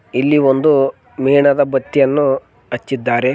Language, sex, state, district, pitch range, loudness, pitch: Kannada, male, Karnataka, Koppal, 130-140 Hz, -15 LUFS, 135 Hz